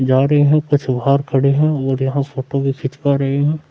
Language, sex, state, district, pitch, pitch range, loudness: Hindi, male, Bihar, Vaishali, 140 Hz, 135-145 Hz, -16 LUFS